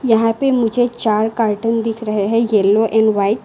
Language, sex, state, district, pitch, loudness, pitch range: Hindi, female, Arunachal Pradesh, Lower Dibang Valley, 225 Hz, -16 LUFS, 215-230 Hz